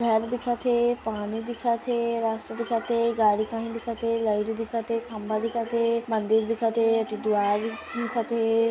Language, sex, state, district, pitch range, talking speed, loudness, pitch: Hindi, female, Chhattisgarh, Kabirdham, 220-235 Hz, 165 wpm, -26 LUFS, 230 Hz